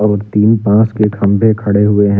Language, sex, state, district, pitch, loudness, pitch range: Hindi, male, Jharkhand, Deoghar, 105 Hz, -12 LUFS, 105-110 Hz